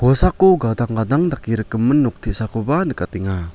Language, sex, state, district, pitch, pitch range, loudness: Garo, male, Meghalaya, West Garo Hills, 115 Hz, 110-145 Hz, -18 LUFS